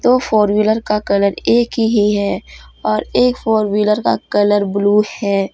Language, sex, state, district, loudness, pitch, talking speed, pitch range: Hindi, female, Jharkhand, Deoghar, -15 LUFS, 210 Hz, 175 wpm, 200-220 Hz